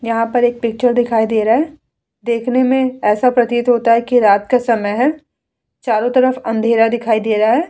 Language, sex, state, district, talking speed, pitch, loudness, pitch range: Hindi, female, Bihar, Vaishali, 210 wpm, 235 Hz, -15 LUFS, 225-250 Hz